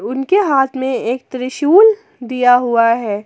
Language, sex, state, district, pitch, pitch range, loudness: Hindi, female, Jharkhand, Garhwa, 255 Hz, 240-290 Hz, -14 LUFS